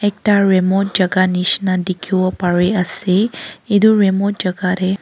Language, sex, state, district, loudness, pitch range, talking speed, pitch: Nagamese, female, Nagaland, Kohima, -15 LUFS, 185-200 Hz, 120 wpm, 190 Hz